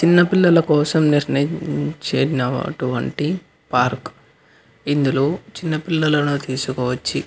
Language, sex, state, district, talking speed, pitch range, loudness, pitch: Telugu, male, Andhra Pradesh, Anantapur, 85 wpm, 135-165 Hz, -19 LUFS, 150 Hz